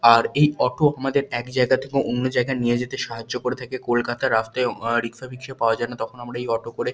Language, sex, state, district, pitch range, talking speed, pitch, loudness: Bengali, male, West Bengal, Kolkata, 115-130 Hz, 250 wpm, 125 Hz, -23 LUFS